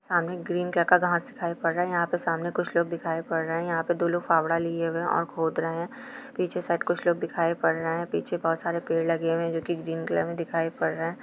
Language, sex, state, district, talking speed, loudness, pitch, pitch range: Hindi, female, Chhattisgarh, Bilaspur, 285 wpm, -27 LUFS, 170 Hz, 165-175 Hz